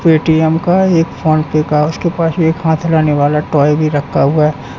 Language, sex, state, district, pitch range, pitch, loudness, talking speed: Hindi, male, Uttar Pradesh, Lalitpur, 150-165 Hz, 155 Hz, -13 LUFS, 215 wpm